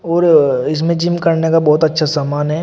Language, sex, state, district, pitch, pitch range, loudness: Hindi, male, Uttar Pradesh, Shamli, 160 Hz, 150-170 Hz, -14 LUFS